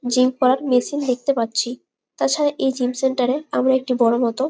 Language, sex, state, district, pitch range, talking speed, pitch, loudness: Bengali, female, West Bengal, Malda, 245-270 Hz, 185 wpm, 255 Hz, -20 LUFS